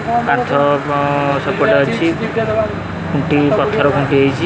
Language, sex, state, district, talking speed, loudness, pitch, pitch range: Odia, male, Odisha, Khordha, 105 wpm, -15 LUFS, 145 Hz, 140-195 Hz